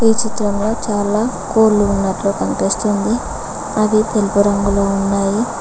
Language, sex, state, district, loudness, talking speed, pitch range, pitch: Telugu, female, Telangana, Mahabubabad, -16 LUFS, 105 wpm, 200-220 Hz, 210 Hz